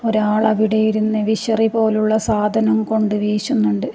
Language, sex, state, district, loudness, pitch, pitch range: Malayalam, female, Kerala, Kasaragod, -17 LUFS, 220 Hz, 215-220 Hz